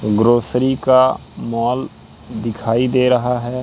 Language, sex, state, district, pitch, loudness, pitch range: Hindi, male, Madhya Pradesh, Katni, 125 Hz, -17 LUFS, 115-125 Hz